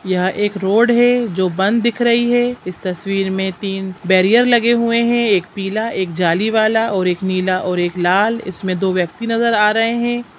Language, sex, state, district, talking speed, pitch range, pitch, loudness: Hindi, female, Chhattisgarh, Sukma, 200 wpm, 185-235 Hz, 200 Hz, -16 LUFS